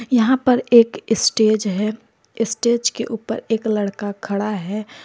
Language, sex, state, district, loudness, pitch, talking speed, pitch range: Hindi, female, Jharkhand, Garhwa, -19 LUFS, 225 Hz, 140 wpm, 210-235 Hz